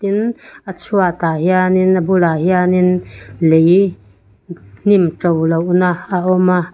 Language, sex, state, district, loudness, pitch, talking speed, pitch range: Mizo, female, Mizoram, Aizawl, -14 LUFS, 180 Hz, 135 wpm, 165-185 Hz